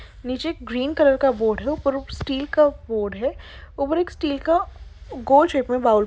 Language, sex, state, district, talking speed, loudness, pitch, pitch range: Hindi, female, Jharkhand, Sahebganj, 210 wpm, -22 LUFS, 275 Hz, 250-300 Hz